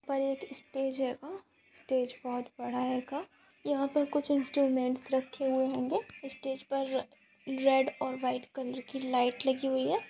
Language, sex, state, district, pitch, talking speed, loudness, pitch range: Hindi, female, Goa, North and South Goa, 265 Hz, 155 wpm, -33 LUFS, 255-275 Hz